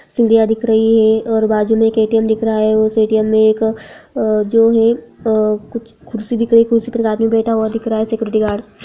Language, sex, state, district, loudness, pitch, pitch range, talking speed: Hindi, female, Bihar, Araria, -14 LUFS, 220 Hz, 220-225 Hz, 235 wpm